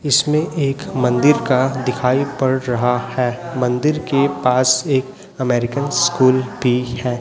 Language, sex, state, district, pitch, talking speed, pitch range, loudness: Hindi, male, Chhattisgarh, Raipur, 130 Hz, 140 wpm, 125-145 Hz, -17 LUFS